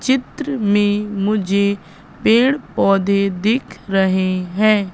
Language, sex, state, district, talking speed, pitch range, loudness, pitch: Hindi, female, Madhya Pradesh, Katni, 95 wpm, 195-220 Hz, -17 LUFS, 205 Hz